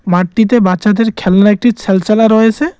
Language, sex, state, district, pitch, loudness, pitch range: Bengali, male, West Bengal, Cooch Behar, 215 Hz, -11 LUFS, 190-225 Hz